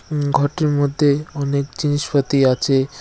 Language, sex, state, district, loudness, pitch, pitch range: Bengali, male, West Bengal, Cooch Behar, -18 LUFS, 145 Hz, 140-145 Hz